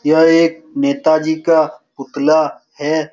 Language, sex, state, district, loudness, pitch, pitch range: Hindi, male, Bihar, Saran, -15 LUFS, 155 Hz, 145-160 Hz